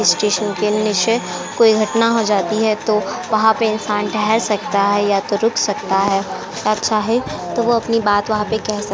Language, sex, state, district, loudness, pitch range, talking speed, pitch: Hindi, female, Uttar Pradesh, Jyotiba Phule Nagar, -17 LUFS, 205-220 Hz, 210 wpm, 215 Hz